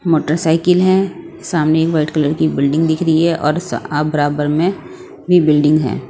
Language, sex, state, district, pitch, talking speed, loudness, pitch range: Hindi, female, Punjab, Pathankot, 160 Hz, 175 wpm, -15 LUFS, 150-175 Hz